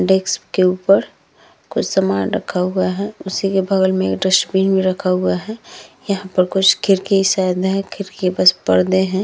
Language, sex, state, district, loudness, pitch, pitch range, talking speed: Hindi, female, Uttar Pradesh, Hamirpur, -17 LUFS, 190 Hz, 185-195 Hz, 190 wpm